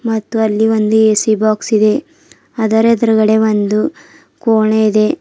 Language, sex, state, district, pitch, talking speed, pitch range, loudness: Kannada, female, Karnataka, Bidar, 220 Hz, 125 wpm, 215-225 Hz, -13 LUFS